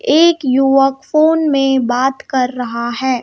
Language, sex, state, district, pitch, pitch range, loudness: Hindi, female, Madhya Pradesh, Bhopal, 270 Hz, 255-285 Hz, -14 LUFS